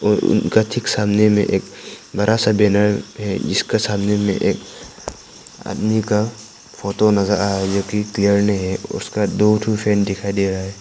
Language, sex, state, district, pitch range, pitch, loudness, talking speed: Hindi, male, Arunachal Pradesh, Papum Pare, 100-105 Hz, 105 Hz, -18 LUFS, 185 wpm